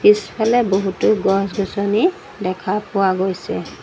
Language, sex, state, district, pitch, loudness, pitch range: Assamese, female, Assam, Sonitpur, 200 Hz, -19 LUFS, 195-210 Hz